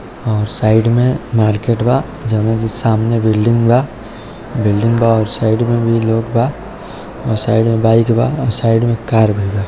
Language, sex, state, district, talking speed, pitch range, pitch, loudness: Maithili, male, Bihar, Samastipur, 165 wpm, 110-115 Hz, 115 Hz, -14 LUFS